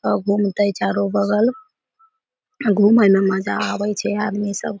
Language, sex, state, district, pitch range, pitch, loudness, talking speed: Maithili, female, Bihar, Samastipur, 200-225 Hz, 205 Hz, -18 LUFS, 150 wpm